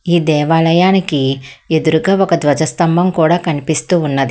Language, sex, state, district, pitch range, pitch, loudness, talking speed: Telugu, female, Telangana, Hyderabad, 150-175 Hz, 160 Hz, -13 LUFS, 110 wpm